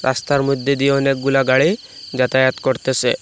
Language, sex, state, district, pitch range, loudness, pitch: Bengali, male, Assam, Hailakandi, 130-140 Hz, -17 LUFS, 130 Hz